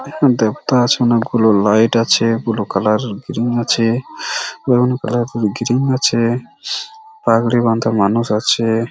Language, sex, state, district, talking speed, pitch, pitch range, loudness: Bengali, male, West Bengal, Purulia, 85 wpm, 115 Hz, 115-125 Hz, -16 LUFS